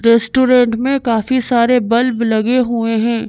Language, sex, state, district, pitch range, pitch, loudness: Hindi, female, Madhya Pradesh, Bhopal, 230-250 Hz, 235 Hz, -14 LUFS